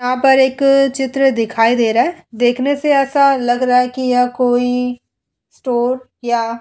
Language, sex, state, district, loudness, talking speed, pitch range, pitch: Hindi, female, Uttar Pradesh, Muzaffarnagar, -15 LUFS, 180 wpm, 245-270 Hz, 250 Hz